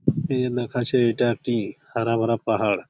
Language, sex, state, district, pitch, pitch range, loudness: Bengali, male, West Bengal, Malda, 120 Hz, 115-125 Hz, -23 LUFS